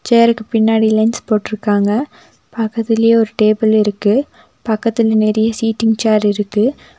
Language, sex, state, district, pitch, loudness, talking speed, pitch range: Tamil, female, Tamil Nadu, Nilgiris, 220 Hz, -14 LUFS, 110 wpm, 215-230 Hz